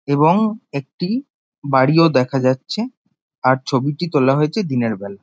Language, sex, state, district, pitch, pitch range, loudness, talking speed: Bengali, male, West Bengal, Jhargram, 145 Hz, 130-190 Hz, -18 LUFS, 125 wpm